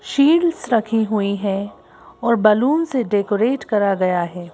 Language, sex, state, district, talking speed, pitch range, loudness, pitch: Hindi, female, Madhya Pradesh, Bhopal, 145 wpm, 200-260 Hz, -18 LUFS, 220 Hz